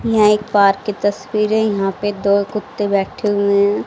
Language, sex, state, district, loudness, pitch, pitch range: Hindi, female, Haryana, Rohtak, -17 LUFS, 205 Hz, 200-210 Hz